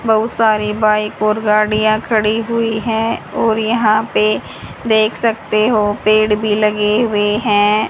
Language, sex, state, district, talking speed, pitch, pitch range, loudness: Hindi, female, Haryana, Jhajjar, 145 wpm, 215 Hz, 210-225 Hz, -15 LUFS